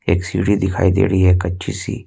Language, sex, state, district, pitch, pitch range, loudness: Hindi, male, Jharkhand, Ranchi, 95 Hz, 90-100 Hz, -17 LUFS